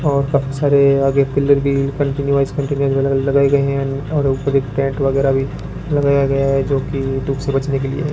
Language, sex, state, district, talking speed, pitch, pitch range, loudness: Hindi, male, Rajasthan, Bikaner, 175 wpm, 140 Hz, 135-140 Hz, -17 LUFS